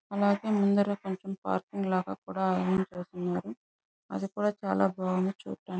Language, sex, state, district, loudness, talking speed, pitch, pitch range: Telugu, male, Andhra Pradesh, Chittoor, -30 LUFS, 125 wpm, 190 Hz, 185-200 Hz